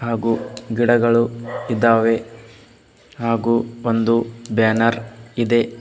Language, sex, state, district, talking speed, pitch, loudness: Kannada, male, Karnataka, Bidar, 70 wpm, 115 Hz, -19 LUFS